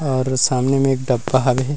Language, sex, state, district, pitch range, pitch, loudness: Chhattisgarhi, male, Chhattisgarh, Rajnandgaon, 130-135 Hz, 130 Hz, -18 LUFS